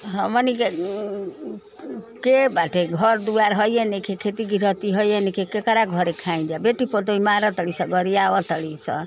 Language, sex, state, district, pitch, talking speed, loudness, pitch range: Bhojpuri, female, Uttar Pradesh, Ghazipur, 205 Hz, 160 wpm, -21 LUFS, 180-220 Hz